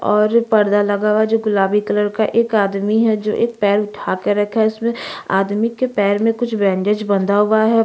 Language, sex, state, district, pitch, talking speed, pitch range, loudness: Hindi, female, Chhattisgarh, Jashpur, 210 Hz, 220 wpm, 205-225 Hz, -17 LUFS